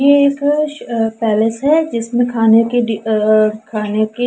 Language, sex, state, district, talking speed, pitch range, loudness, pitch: Hindi, female, Punjab, Pathankot, 155 wpm, 220-275 Hz, -15 LUFS, 230 Hz